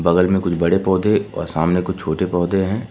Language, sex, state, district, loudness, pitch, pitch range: Hindi, male, Uttar Pradesh, Lucknow, -18 LUFS, 95 Hz, 90-95 Hz